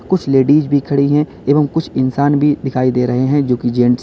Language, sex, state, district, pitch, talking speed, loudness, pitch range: Hindi, male, Uttar Pradesh, Lalitpur, 140 Hz, 255 wpm, -14 LUFS, 130-145 Hz